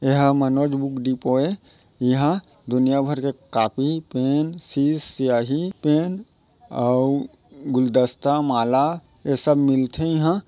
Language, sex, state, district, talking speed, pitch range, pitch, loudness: Chhattisgarhi, male, Chhattisgarh, Raigarh, 125 wpm, 130-150 Hz, 140 Hz, -21 LUFS